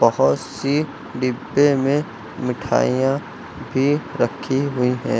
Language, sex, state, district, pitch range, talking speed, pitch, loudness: Hindi, male, Uttar Pradesh, Lucknow, 125-140 Hz, 105 wpm, 135 Hz, -20 LUFS